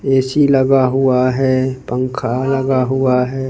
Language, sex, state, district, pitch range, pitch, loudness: Hindi, male, Madhya Pradesh, Bhopal, 130-135 Hz, 130 Hz, -15 LUFS